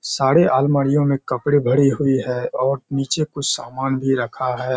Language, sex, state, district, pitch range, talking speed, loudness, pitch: Hindi, male, Bihar, Kishanganj, 130-140 Hz, 175 wpm, -19 LUFS, 135 Hz